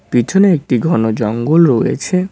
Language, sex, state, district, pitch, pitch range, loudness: Bengali, male, West Bengal, Cooch Behar, 150 Hz, 120-180 Hz, -13 LUFS